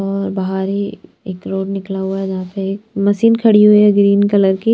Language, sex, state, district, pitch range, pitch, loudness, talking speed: Hindi, female, Bihar, Patna, 195-205 Hz, 195 Hz, -15 LUFS, 225 wpm